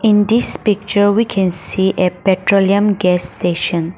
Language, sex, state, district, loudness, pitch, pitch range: English, female, Nagaland, Dimapur, -15 LUFS, 195 Hz, 180-205 Hz